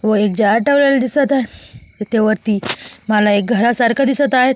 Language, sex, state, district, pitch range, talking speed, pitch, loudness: Marathi, female, Maharashtra, Solapur, 215-270 Hz, 145 wpm, 235 Hz, -15 LUFS